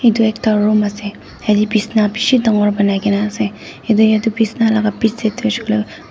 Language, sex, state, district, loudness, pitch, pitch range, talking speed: Nagamese, female, Nagaland, Dimapur, -15 LUFS, 215 Hz, 205-220 Hz, 195 wpm